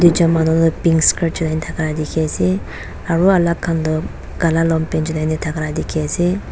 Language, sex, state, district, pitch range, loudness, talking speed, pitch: Nagamese, female, Nagaland, Dimapur, 155-165 Hz, -17 LUFS, 165 wpm, 160 Hz